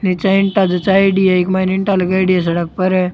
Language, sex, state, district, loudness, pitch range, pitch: Rajasthani, male, Rajasthan, Churu, -14 LUFS, 180-195 Hz, 185 Hz